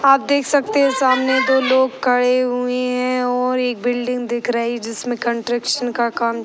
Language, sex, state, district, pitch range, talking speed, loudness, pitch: Hindi, female, Bihar, Sitamarhi, 240-260 Hz, 185 wpm, -18 LUFS, 250 Hz